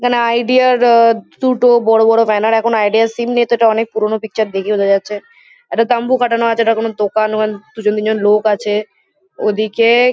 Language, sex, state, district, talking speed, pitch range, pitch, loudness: Bengali, female, West Bengal, Kolkata, 200 wpm, 215-235 Hz, 225 Hz, -14 LUFS